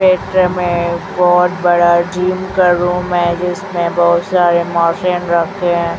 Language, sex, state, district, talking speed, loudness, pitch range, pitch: Hindi, female, Chhattisgarh, Raipur, 150 wpm, -14 LUFS, 170-180 Hz, 175 Hz